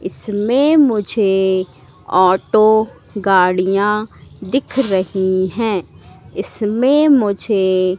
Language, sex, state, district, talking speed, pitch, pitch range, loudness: Hindi, female, Madhya Pradesh, Katni, 70 wpm, 205 Hz, 185-225 Hz, -15 LUFS